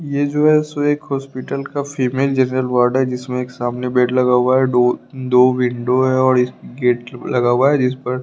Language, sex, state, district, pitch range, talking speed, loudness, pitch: Hindi, male, Bihar, West Champaran, 125-135 Hz, 225 wpm, -17 LUFS, 130 Hz